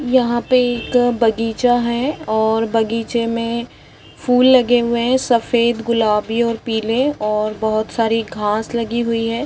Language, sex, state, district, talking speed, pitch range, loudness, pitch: Hindi, female, Chhattisgarh, Raigarh, 150 wpm, 225-245 Hz, -17 LUFS, 235 Hz